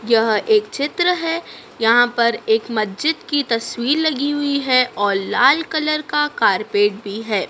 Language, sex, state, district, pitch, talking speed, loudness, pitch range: Hindi, female, Madhya Pradesh, Dhar, 255 Hz, 160 wpm, -18 LUFS, 225-305 Hz